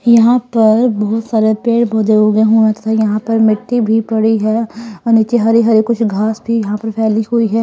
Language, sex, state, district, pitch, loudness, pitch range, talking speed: Hindi, female, Haryana, Rohtak, 220 Hz, -13 LUFS, 220-230 Hz, 205 wpm